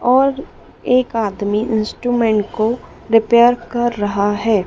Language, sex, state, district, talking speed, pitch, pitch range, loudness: Hindi, female, Madhya Pradesh, Dhar, 115 wpm, 230 Hz, 210-240 Hz, -16 LUFS